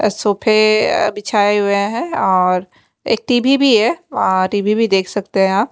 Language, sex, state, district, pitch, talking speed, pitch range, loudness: Hindi, female, Chandigarh, Chandigarh, 205 Hz, 170 wpm, 195-225 Hz, -15 LUFS